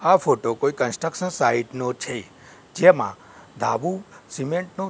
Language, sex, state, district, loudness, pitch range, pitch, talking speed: Gujarati, male, Gujarat, Gandhinagar, -22 LUFS, 125-190 Hz, 170 Hz, 135 wpm